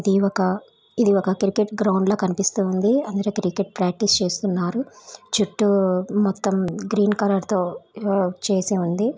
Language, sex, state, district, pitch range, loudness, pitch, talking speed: Telugu, female, Andhra Pradesh, Guntur, 190-210 Hz, -21 LUFS, 200 Hz, 130 wpm